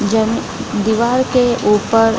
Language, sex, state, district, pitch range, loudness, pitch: Hindi, female, Bihar, Gaya, 220-240 Hz, -15 LUFS, 225 Hz